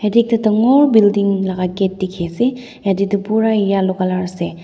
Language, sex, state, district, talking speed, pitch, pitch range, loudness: Nagamese, female, Nagaland, Dimapur, 170 wpm, 200 Hz, 185-225 Hz, -16 LUFS